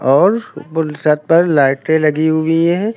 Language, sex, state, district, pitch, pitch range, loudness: Hindi, male, Uttar Pradesh, Lucknow, 160 Hz, 150-170 Hz, -14 LUFS